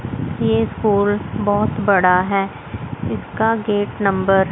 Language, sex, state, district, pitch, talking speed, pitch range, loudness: Hindi, female, Chandigarh, Chandigarh, 195 Hz, 120 wpm, 145-205 Hz, -18 LUFS